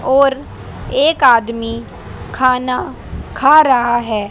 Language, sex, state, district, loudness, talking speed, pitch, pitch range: Hindi, female, Haryana, Jhajjar, -13 LUFS, 95 wpm, 245 Hz, 215-270 Hz